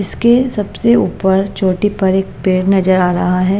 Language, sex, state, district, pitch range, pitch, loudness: Hindi, female, Maharashtra, Mumbai Suburban, 185-210 Hz, 195 Hz, -14 LUFS